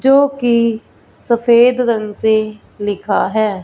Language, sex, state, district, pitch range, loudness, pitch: Hindi, female, Punjab, Fazilka, 215-240 Hz, -15 LUFS, 230 Hz